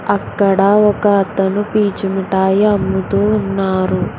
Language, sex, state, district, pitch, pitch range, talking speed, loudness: Telugu, female, Telangana, Hyderabad, 195 Hz, 190-205 Hz, 100 wpm, -15 LUFS